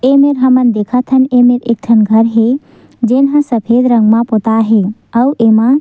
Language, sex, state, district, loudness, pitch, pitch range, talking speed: Chhattisgarhi, female, Chhattisgarh, Sukma, -10 LUFS, 240 Hz, 225-260 Hz, 195 wpm